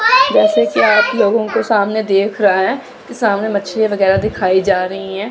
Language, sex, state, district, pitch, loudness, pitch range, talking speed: Hindi, female, Chandigarh, Chandigarh, 200 Hz, -14 LUFS, 190-220 Hz, 190 wpm